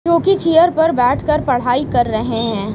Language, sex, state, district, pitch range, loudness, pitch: Hindi, female, Haryana, Rohtak, 235-330 Hz, -15 LUFS, 260 Hz